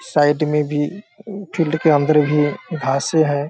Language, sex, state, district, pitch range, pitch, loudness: Hindi, male, Bihar, Sitamarhi, 145-165 Hz, 150 Hz, -18 LUFS